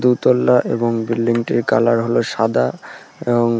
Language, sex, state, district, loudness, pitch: Bengali, male, West Bengal, Purulia, -17 LUFS, 115 Hz